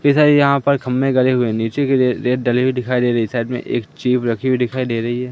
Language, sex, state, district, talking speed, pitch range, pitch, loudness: Hindi, male, Madhya Pradesh, Katni, 315 wpm, 120-130 Hz, 125 Hz, -17 LUFS